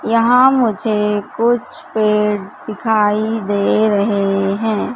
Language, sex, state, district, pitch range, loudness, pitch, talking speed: Hindi, female, Madhya Pradesh, Katni, 205-225 Hz, -16 LUFS, 215 Hz, 95 wpm